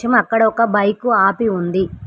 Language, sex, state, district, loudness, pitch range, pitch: Telugu, female, Telangana, Mahabubabad, -16 LUFS, 195-230 Hz, 220 Hz